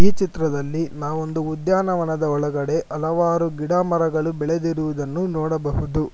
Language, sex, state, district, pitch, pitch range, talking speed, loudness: Kannada, male, Karnataka, Bangalore, 160 Hz, 150-170 Hz, 105 wpm, -22 LUFS